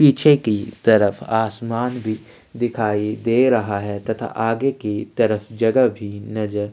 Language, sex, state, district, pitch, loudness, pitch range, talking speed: Hindi, male, Chhattisgarh, Sukma, 110 Hz, -20 LUFS, 105-120 Hz, 150 wpm